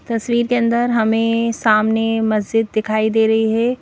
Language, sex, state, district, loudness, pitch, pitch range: Hindi, female, Madhya Pradesh, Bhopal, -17 LUFS, 225 Hz, 220-230 Hz